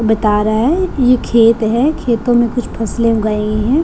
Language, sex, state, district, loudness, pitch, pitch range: Hindi, female, Bihar, Gopalganj, -14 LUFS, 230 Hz, 220-250 Hz